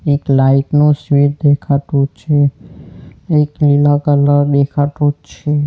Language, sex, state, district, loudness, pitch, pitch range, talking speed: Gujarati, male, Gujarat, Valsad, -13 LUFS, 145 Hz, 140-150 Hz, 125 wpm